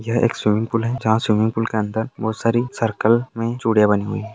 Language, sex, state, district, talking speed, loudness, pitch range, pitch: Hindi, male, Bihar, Jamui, 250 wpm, -20 LUFS, 110-115 Hz, 110 Hz